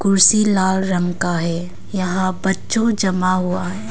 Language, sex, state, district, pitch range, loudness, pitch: Hindi, female, Arunachal Pradesh, Longding, 180-195 Hz, -18 LUFS, 185 Hz